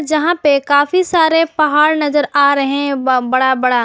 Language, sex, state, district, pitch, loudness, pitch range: Hindi, female, Jharkhand, Garhwa, 290 Hz, -13 LUFS, 275-310 Hz